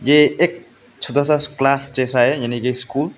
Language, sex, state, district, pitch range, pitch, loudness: Hindi, male, Meghalaya, West Garo Hills, 125-150 Hz, 140 Hz, -17 LUFS